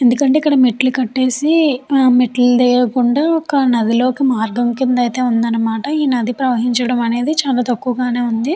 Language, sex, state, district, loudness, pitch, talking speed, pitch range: Telugu, female, Andhra Pradesh, Chittoor, -15 LUFS, 250 Hz, 155 wpm, 245-270 Hz